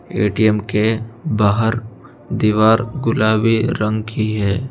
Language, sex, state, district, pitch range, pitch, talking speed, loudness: Hindi, male, Arunachal Pradesh, Lower Dibang Valley, 110-115 Hz, 110 Hz, 100 wpm, -17 LUFS